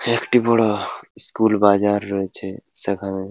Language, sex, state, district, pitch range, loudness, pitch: Bengali, male, West Bengal, Paschim Medinipur, 100-115 Hz, -20 LUFS, 105 Hz